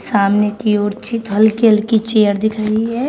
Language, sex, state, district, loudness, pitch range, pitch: Hindi, female, Uttar Pradesh, Shamli, -15 LUFS, 210-225 Hz, 215 Hz